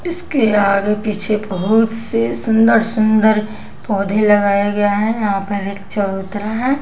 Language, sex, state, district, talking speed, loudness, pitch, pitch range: Hindi, female, Bihar, West Champaran, 130 wpm, -16 LUFS, 215 Hz, 200-225 Hz